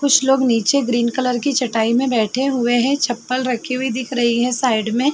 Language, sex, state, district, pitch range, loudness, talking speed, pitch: Hindi, female, Uttar Pradesh, Muzaffarnagar, 240-265 Hz, -18 LUFS, 220 wpm, 250 Hz